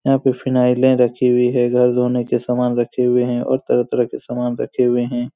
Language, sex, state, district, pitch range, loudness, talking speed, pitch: Hindi, male, Bihar, Supaul, 120-125 Hz, -17 LUFS, 225 wpm, 125 Hz